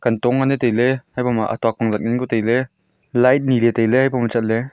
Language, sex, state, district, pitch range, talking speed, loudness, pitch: Wancho, male, Arunachal Pradesh, Longding, 115-130 Hz, 205 wpm, -18 LUFS, 120 Hz